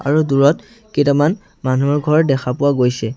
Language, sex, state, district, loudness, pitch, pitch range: Assamese, male, Assam, Sonitpur, -16 LUFS, 145 Hz, 135-155 Hz